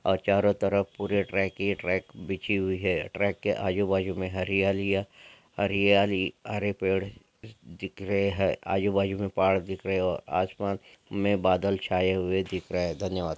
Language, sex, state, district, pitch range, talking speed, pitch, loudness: Hindi, male, Chhattisgarh, Bastar, 95-100 Hz, 180 wpm, 95 Hz, -27 LUFS